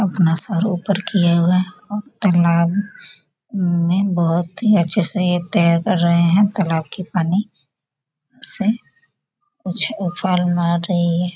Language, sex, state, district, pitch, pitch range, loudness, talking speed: Hindi, female, Bihar, Gopalganj, 180 Hz, 170-200 Hz, -17 LUFS, 120 wpm